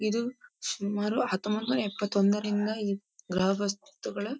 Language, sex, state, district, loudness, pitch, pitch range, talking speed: Kannada, female, Karnataka, Dharwad, -30 LUFS, 210 Hz, 200-225 Hz, 95 wpm